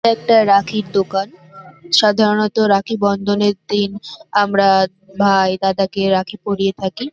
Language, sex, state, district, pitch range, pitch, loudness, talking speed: Bengali, female, West Bengal, North 24 Parganas, 195-210 Hz, 200 Hz, -16 LUFS, 120 wpm